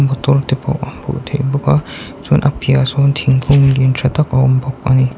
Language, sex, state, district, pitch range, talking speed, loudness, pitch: Mizo, male, Mizoram, Aizawl, 130-140 Hz, 245 wpm, -14 LUFS, 135 Hz